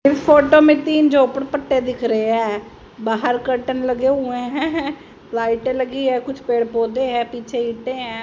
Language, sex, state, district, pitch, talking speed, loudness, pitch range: Hindi, female, Haryana, Jhajjar, 255 Hz, 175 wpm, -18 LUFS, 235-275 Hz